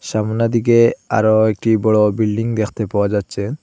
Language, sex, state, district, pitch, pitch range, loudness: Bengali, male, Assam, Hailakandi, 110 Hz, 105-115 Hz, -16 LUFS